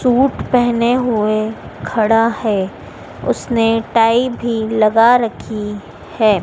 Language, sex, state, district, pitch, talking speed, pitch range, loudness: Hindi, female, Madhya Pradesh, Dhar, 225 Hz, 105 wpm, 215-240 Hz, -16 LUFS